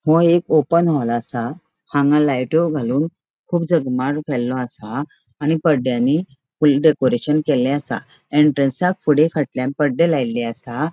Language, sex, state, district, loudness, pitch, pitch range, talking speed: Konkani, female, Goa, North and South Goa, -19 LUFS, 150 Hz, 130-160 Hz, 130 wpm